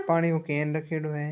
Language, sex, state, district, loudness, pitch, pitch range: Marwari, male, Rajasthan, Nagaur, -28 LUFS, 155 Hz, 150-165 Hz